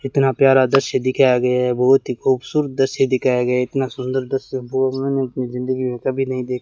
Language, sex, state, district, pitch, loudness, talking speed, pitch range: Hindi, male, Rajasthan, Bikaner, 130 Hz, -18 LUFS, 225 wpm, 125-135 Hz